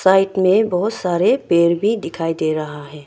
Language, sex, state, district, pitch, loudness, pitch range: Hindi, female, Arunachal Pradesh, Longding, 180 Hz, -17 LUFS, 165-195 Hz